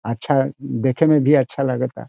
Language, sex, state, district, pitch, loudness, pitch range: Bhojpuri, male, Bihar, Saran, 135 Hz, -19 LUFS, 130-140 Hz